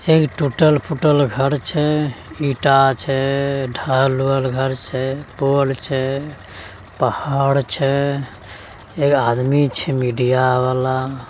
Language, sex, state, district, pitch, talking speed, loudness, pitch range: Angika, male, Bihar, Begusarai, 135 Hz, 95 wpm, -18 LUFS, 130-140 Hz